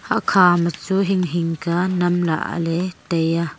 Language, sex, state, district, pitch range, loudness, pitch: Wancho, female, Arunachal Pradesh, Longding, 165-180 Hz, -19 LUFS, 170 Hz